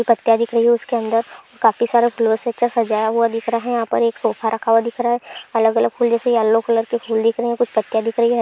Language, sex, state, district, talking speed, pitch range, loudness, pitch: Hindi, female, Bihar, Supaul, 240 wpm, 225-235 Hz, -18 LUFS, 230 Hz